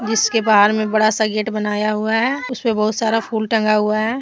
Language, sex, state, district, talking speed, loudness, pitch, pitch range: Hindi, female, Jharkhand, Deoghar, 240 wpm, -17 LUFS, 220 Hz, 215-225 Hz